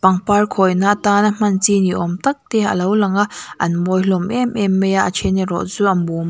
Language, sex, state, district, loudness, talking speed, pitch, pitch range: Mizo, female, Mizoram, Aizawl, -16 LUFS, 250 wpm, 195 Hz, 185-205 Hz